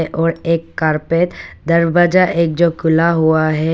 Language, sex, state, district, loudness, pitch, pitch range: Hindi, female, Arunachal Pradesh, Papum Pare, -15 LUFS, 165 Hz, 160-170 Hz